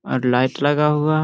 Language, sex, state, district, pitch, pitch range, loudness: Hindi, male, Bihar, Gaya, 145 Hz, 130-150 Hz, -18 LUFS